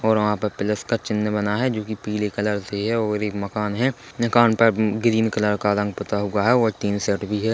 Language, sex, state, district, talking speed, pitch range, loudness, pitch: Hindi, male, Chhattisgarh, Bilaspur, 255 wpm, 105-115 Hz, -22 LUFS, 105 Hz